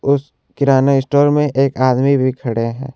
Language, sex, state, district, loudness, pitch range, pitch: Hindi, male, Jharkhand, Ranchi, -15 LUFS, 130-140 Hz, 135 Hz